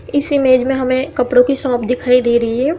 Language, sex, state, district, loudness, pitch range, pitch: Hindi, female, Bihar, Samastipur, -14 LUFS, 250-270 Hz, 255 Hz